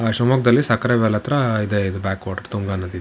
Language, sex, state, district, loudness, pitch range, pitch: Kannada, male, Karnataka, Shimoga, -19 LUFS, 95-120 Hz, 110 Hz